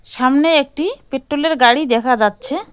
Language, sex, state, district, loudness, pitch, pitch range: Bengali, female, West Bengal, Cooch Behar, -15 LUFS, 275 Hz, 250-305 Hz